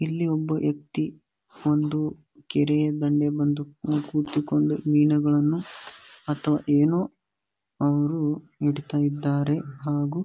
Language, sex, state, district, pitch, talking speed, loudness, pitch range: Kannada, male, Karnataka, Bijapur, 150 Hz, 95 wpm, -25 LUFS, 145-150 Hz